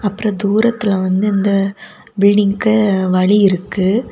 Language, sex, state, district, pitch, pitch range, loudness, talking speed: Tamil, female, Tamil Nadu, Kanyakumari, 200 Hz, 195-210 Hz, -14 LUFS, 100 wpm